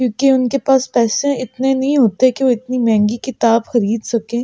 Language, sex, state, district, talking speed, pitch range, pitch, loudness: Hindi, female, Delhi, New Delhi, 205 wpm, 230-265 Hz, 250 Hz, -15 LUFS